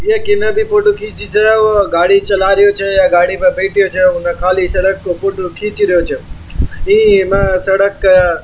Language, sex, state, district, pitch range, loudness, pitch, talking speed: Marwari, male, Rajasthan, Churu, 185-215 Hz, -12 LUFS, 195 Hz, 165 wpm